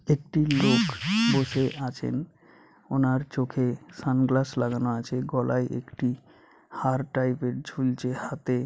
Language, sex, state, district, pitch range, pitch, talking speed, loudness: Bengali, male, West Bengal, Jhargram, 125-135 Hz, 130 Hz, 125 wpm, -27 LUFS